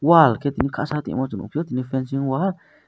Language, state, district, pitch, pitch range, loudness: Kokborok, Tripura, West Tripura, 140 Hz, 130-155 Hz, -22 LUFS